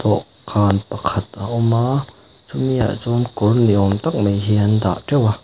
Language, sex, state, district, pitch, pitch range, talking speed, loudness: Mizo, male, Mizoram, Aizawl, 105 Hz, 100-120 Hz, 200 wpm, -18 LUFS